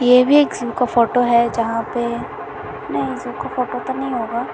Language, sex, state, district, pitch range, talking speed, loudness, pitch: Hindi, female, Chhattisgarh, Bilaspur, 235-250 Hz, 210 wpm, -18 LUFS, 245 Hz